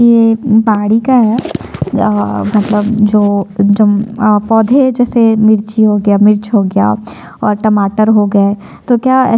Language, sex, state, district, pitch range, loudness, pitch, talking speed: Hindi, female, Chhattisgarh, Sukma, 205-225 Hz, -11 LUFS, 215 Hz, 145 wpm